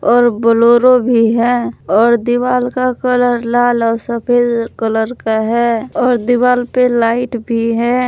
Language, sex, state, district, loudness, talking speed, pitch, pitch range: Hindi, female, Jharkhand, Palamu, -13 LUFS, 150 wpm, 240 Hz, 230-245 Hz